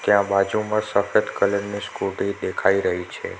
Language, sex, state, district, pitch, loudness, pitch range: Gujarati, male, Gujarat, Navsari, 100 Hz, -22 LUFS, 100-105 Hz